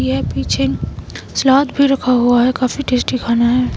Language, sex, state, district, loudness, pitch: Hindi, female, Himachal Pradesh, Shimla, -15 LUFS, 245 Hz